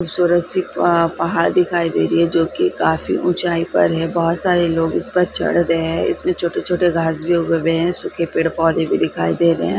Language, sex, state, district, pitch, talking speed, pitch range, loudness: Hindi, female, Bihar, Lakhisarai, 170 Hz, 215 wpm, 165-175 Hz, -17 LUFS